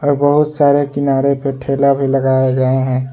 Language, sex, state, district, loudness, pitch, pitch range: Hindi, male, Jharkhand, Ranchi, -14 LUFS, 135 Hz, 130-145 Hz